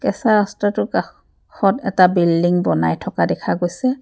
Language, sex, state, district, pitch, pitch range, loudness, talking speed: Assamese, female, Assam, Kamrup Metropolitan, 195 Hz, 175-215 Hz, -18 LUFS, 135 wpm